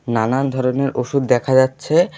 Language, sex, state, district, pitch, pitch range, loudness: Bengali, male, West Bengal, Alipurduar, 130 Hz, 125-135 Hz, -17 LUFS